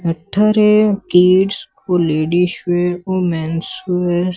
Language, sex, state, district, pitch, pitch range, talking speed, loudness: Odia, male, Odisha, Sambalpur, 180 Hz, 175-190 Hz, 125 wpm, -15 LUFS